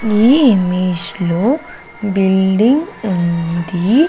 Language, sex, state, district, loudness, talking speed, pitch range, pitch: Telugu, female, Andhra Pradesh, Sri Satya Sai, -15 LUFS, 75 wpm, 180-235 Hz, 195 Hz